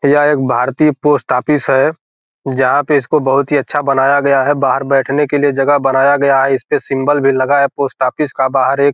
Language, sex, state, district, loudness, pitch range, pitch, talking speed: Hindi, male, Bihar, Gopalganj, -13 LUFS, 135-145 Hz, 140 Hz, 230 wpm